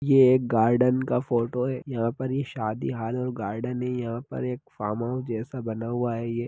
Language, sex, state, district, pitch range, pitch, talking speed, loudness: Hindi, male, Bihar, Begusarai, 115-130 Hz, 125 Hz, 215 wpm, -26 LUFS